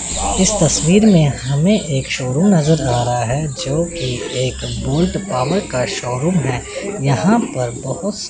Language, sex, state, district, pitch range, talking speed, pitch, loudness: Hindi, male, Chandigarh, Chandigarh, 130-180 Hz, 165 wpm, 150 Hz, -16 LUFS